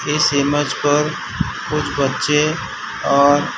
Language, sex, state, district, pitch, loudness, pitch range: Hindi, male, Gujarat, Valsad, 145 Hz, -18 LUFS, 140-150 Hz